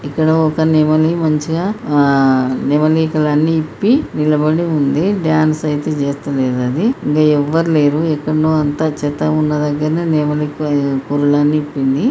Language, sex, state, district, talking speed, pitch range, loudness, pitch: Telugu, male, Karnataka, Dharwad, 145 wpm, 145-160 Hz, -15 LUFS, 150 Hz